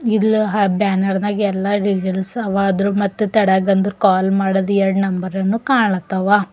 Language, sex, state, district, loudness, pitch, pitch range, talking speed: Kannada, female, Karnataka, Bidar, -17 LUFS, 195 Hz, 190-205 Hz, 155 wpm